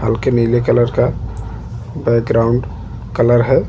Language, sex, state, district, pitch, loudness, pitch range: Hindi, male, Chhattisgarh, Jashpur, 115 Hz, -15 LUFS, 110-120 Hz